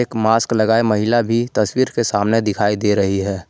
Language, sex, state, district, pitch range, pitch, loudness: Hindi, male, Jharkhand, Garhwa, 105-115 Hz, 110 Hz, -17 LUFS